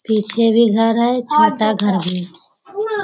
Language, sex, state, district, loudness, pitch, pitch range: Hindi, female, Bihar, Jamui, -16 LUFS, 225 Hz, 215-245 Hz